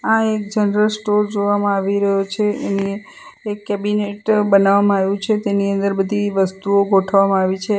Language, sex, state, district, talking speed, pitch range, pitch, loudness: Gujarati, female, Gujarat, Valsad, 160 wpm, 195-210 Hz, 200 Hz, -17 LUFS